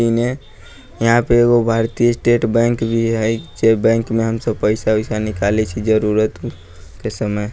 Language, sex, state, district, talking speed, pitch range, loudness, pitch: Maithili, male, Bihar, Sitamarhi, 165 wpm, 110-115 Hz, -17 LUFS, 115 Hz